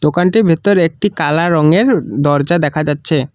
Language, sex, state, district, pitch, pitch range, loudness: Bengali, male, Assam, Kamrup Metropolitan, 160 Hz, 150-175 Hz, -13 LUFS